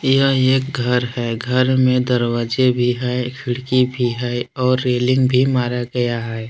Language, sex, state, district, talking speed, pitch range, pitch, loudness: Hindi, male, Jharkhand, Palamu, 175 wpm, 120-130 Hz, 125 Hz, -18 LUFS